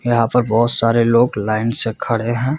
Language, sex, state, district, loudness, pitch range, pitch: Hindi, male, Bihar, Gopalganj, -16 LUFS, 115-120 Hz, 115 Hz